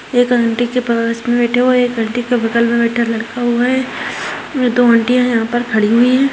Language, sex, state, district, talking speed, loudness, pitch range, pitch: Hindi, female, Bihar, Madhepura, 225 wpm, -14 LUFS, 230-245 Hz, 240 Hz